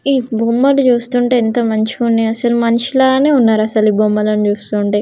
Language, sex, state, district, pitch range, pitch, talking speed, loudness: Telugu, female, Andhra Pradesh, Guntur, 215-250 Hz, 230 Hz, 155 wpm, -13 LUFS